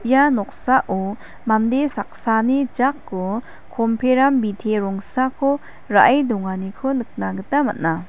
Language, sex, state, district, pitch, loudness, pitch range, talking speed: Garo, female, Meghalaya, West Garo Hills, 230 Hz, -20 LUFS, 195-265 Hz, 95 wpm